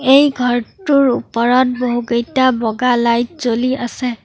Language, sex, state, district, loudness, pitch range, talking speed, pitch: Assamese, female, Assam, Sonitpur, -15 LUFS, 235-260 Hz, 115 wpm, 245 Hz